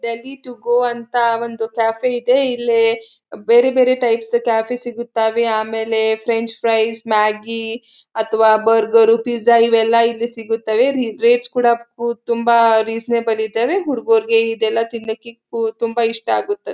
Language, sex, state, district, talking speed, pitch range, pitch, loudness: Kannada, female, Karnataka, Belgaum, 135 wpm, 225-240 Hz, 230 Hz, -16 LUFS